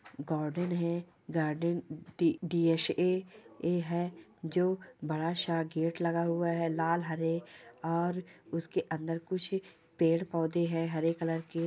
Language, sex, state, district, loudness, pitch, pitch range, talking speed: Hindi, female, Telangana, Nalgonda, -33 LUFS, 170 Hz, 165-175 Hz, 125 wpm